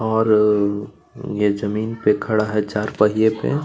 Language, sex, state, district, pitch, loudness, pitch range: Hindi, male, Chhattisgarh, Kabirdham, 105 Hz, -19 LUFS, 105-110 Hz